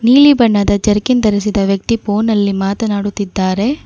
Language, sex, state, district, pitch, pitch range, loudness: Kannada, female, Karnataka, Bangalore, 210 Hz, 200-225 Hz, -13 LUFS